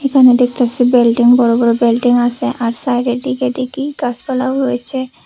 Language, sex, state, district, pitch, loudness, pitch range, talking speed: Bengali, female, Tripura, West Tripura, 250 Hz, -14 LUFS, 240-260 Hz, 160 wpm